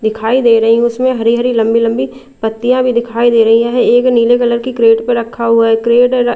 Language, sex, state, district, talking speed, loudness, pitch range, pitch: Hindi, female, Bihar, Patna, 225 wpm, -11 LUFS, 230-245 Hz, 235 Hz